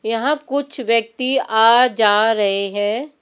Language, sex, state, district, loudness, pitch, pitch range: Hindi, female, Rajasthan, Jaipur, -16 LUFS, 230 Hz, 215-265 Hz